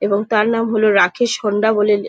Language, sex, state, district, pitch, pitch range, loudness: Bengali, female, West Bengal, Jhargram, 215 Hz, 205-220 Hz, -16 LUFS